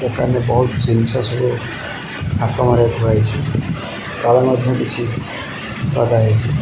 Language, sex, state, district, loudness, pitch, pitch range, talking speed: Odia, male, Odisha, Sambalpur, -17 LUFS, 120 Hz, 115-125 Hz, 125 wpm